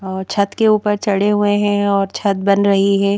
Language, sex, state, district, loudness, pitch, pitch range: Hindi, female, Madhya Pradesh, Bhopal, -16 LUFS, 200 Hz, 195-205 Hz